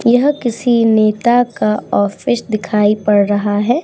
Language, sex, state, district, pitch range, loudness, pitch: Hindi, female, Uttar Pradesh, Hamirpur, 205-240 Hz, -14 LUFS, 220 Hz